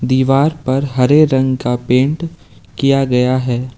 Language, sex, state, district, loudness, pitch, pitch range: Hindi, male, Uttar Pradesh, Lalitpur, -14 LUFS, 130 Hz, 125-140 Hz